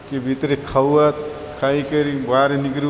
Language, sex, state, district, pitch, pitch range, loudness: Halbi, male, Chhattisgarh, Bastar, 140 Hz, 135-150 Hz, -19 LUFS